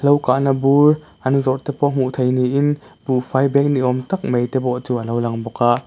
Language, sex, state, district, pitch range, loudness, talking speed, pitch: Mizo, male, Mizoram, Aizawl, 125-140 Hz, -18 LUFS, 235 wpm, 130 Hz